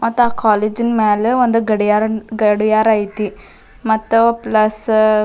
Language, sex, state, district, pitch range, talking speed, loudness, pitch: Kannada, female, Karnataka, Dharwad, 215-230 Hz, 125 wpm, -15 LUFS, 220 Hz